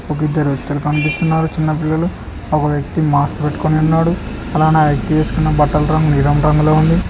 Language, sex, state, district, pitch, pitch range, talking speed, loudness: Telugu, male, Telangana, Hyderabad, 155 Hz, 150-155 Hz, 170 wpm, -15 LUFS